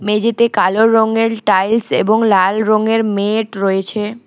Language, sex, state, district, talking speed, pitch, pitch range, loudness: Bengali, female, West Bengal, Alipurduar, 125 wpm, 215 Hz, 200-225 Hz, -14 LUFS